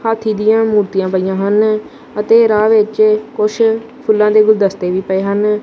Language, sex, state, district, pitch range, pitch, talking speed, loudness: Punjabi, male, Punjab, Kapurthala, 200-220 Hz, 215 Hz, 160 wpm, -13 LUFS